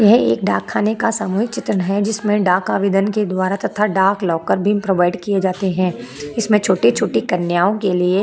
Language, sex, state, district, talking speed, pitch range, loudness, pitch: Hindi, female, Chhattisgarh, Korba, 180 wpm, 180-210 Hz, -17 LUFS, 195 Hz